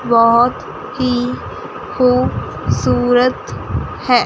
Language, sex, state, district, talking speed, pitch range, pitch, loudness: Hindi, female, Chandigarh, Chandigarh, 70 wpm, 245-255 Hz, 250 Hz, -16 LUFS